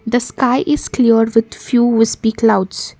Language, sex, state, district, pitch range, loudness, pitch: English, female, Karnataka, Bangalore, 225-245 Hz, -15 LUFS, 230 Hz